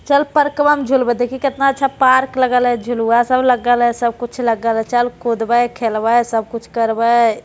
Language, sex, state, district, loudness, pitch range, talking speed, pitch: Hindi, female, Bihar, Jamui, -16 LUFS, 230-260 Hz, 210 wpm, 240 Hz